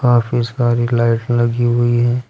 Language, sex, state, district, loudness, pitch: Hindi, male, Uttar Pradesh, Saharanpur, -16 LUFS, 120 Hz